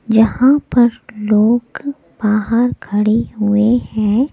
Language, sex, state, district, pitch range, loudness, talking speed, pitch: Hindi, female, Delhi, New Delhi, 210-245 Hz, -15 LUFS, 95 wpm, 225 Hz